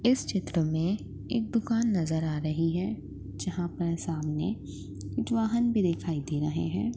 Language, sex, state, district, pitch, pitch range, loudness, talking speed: Hindi, female, Maharashtra, Sindhudurg, 170 Hz, 155-220 Hz, -30 LUFS, 155 wpm